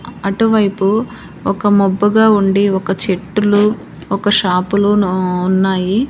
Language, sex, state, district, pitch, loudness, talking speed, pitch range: Telugu, female, Andhra Pradesh, Manyam, 200 Hz, -14 LUFS, 90 wpm, 190-210 Hz